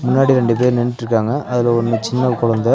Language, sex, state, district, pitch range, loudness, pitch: Tamil, male, Tamil Nadu, Nilgiris, 115-125 Hz, -16 LUFS, 120 Hz